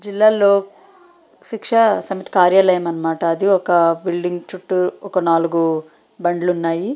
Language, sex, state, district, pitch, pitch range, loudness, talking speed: Telugu, female, Andhra Pradesh, Srikakulam, 180 Hz, 170-200 Hz, -17 LUFS, 130 wpm